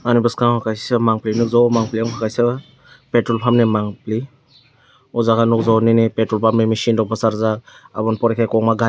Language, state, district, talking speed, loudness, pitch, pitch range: Kokborok, Tripura, West Tripura, 160 wpm, -17 LUFS, 115 Hz, 110-120 Hz